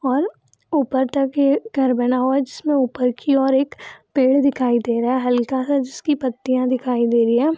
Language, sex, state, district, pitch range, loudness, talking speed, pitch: Hindi, female, Bihar, Purnia, 250-275 Hz, -19 LUFS, 190 wpm, 260 Hz